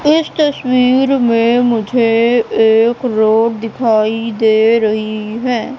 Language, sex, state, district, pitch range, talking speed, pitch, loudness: Hindi, female, Madhya Pradesh, Katni, 220-250 Hz, 105 wpm, 230 Hz, -13 LUFS